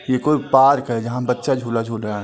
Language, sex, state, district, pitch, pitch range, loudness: Hindi, male, Uttar Pradesh, Etah, 125 Hz, 115-135 Hz, -18 LUFS